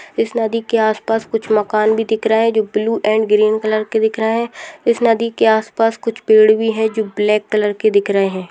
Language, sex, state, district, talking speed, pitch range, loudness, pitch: Hindi, female, Rajasthan, Churu, 255 wpm, 215-225 Hz, -16 LUFS, 220 Hz